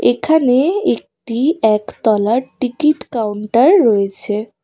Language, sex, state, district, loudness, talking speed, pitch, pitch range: Bengali, female, West Bengal, Cooch Behar, -15 LUFS, 80 wpm, 240 Hz, 215-300 Hz